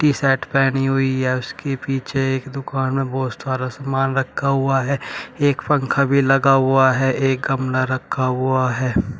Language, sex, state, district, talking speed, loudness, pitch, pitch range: Hindi, male, Uttar Pradesh, Shamli, 170 wpm, -19 LUFS, 135 Hz, 130-135 Hz